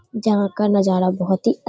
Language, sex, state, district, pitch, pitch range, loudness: Hindi, female, Bihar, Darbhanga, 200 Hz, 190-220 Hz, -19 LUFS